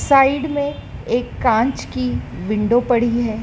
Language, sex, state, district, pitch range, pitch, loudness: Hindi, female, Madhya Pradesh, Dhar, 230-275 Hz, 240 Hz, -19 LUFS